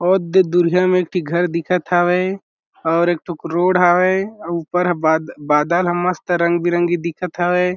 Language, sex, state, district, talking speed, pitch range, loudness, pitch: Chhattisgarhi, male, Chhattisgarh, Jashpur, 155 wpm, 170-180 Hz, -17 LUFS, 175 Hz